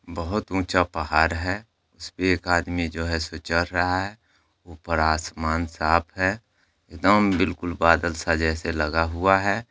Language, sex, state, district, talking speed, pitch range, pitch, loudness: Hindi, male, Bihar, Sitamarhi, 155 wpm, 80-95 Hz, 85 Hz, -23 LUFS